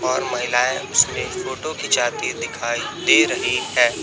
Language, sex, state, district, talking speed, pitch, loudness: Hindi, male, Chhattisgarh, Raipur, 135 wpm, 190 Hz, -19 LUFS